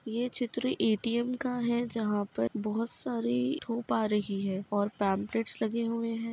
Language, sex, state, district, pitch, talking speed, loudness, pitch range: Hindi, female, Uttar Pradesh, Budaun, 230 Hz, 170 wpm, -31 LUFS, 210-240 Hz